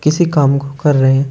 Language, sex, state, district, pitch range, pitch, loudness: Hindi, male, Uttar Pradesh, Shamli, 140-150 Hz, 140 Hz, -13 LUFS